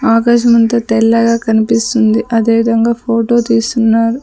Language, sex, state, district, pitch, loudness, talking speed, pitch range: Telugu, female, Andhra Pradesh, Sri Satya Sai, 230 Hz, -11 LUFS, 85 wpm, 225-235 Hz